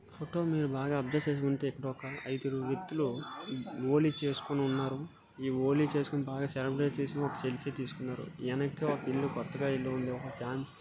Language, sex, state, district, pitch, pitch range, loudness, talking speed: Telugu, male, Telangana, Nalgonda, 140 Hz, 130-145 Hz, -34 LUFS, 160 wpm